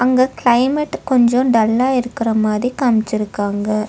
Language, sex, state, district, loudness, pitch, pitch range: Tamil, female, Tamil Nadu, Nilgiris, -16 LUFS, 240 Hz, 215-255 Hz